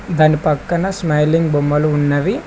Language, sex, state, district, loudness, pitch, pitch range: Telugu, male, Telangana, Mahabubabad, -16 LUFS, 155 Hz, 150-170 Hz